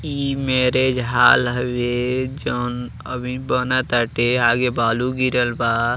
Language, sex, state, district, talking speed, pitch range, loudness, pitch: Bhojpuri, male, Uttar Pradesh, Deoria, 120 wpm, 120-130 Hz, -19 LUFS, 125 Hz